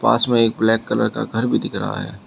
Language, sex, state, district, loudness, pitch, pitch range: Hindi, male, Uttar Pradesh, Shamli, -19 LUFS, 110 Hz, 100-115 Hz